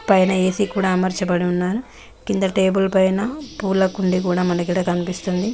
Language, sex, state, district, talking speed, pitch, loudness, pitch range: Telugu, female, Telangana, Mahabubabad, 130 wpm, 190 Hz, -20 LUFS, 180-195 Hz